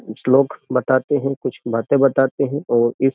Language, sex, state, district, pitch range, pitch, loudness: Hindi, male, Uttar Pradesh, Jyotiba Phule Nagar, 120-140 Hz, 135 Hz, -18 LUFS